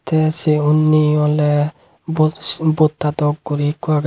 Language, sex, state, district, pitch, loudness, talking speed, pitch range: Chakma, male, Tripura, Unakoti, 150 Hz, -16 LUFS, 145 wpm, 150-155 Hz